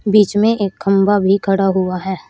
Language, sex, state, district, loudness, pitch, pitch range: Hindi, female, Haryana, Rohtak, -15 LUFS, 195 Hz, 190-205 Hz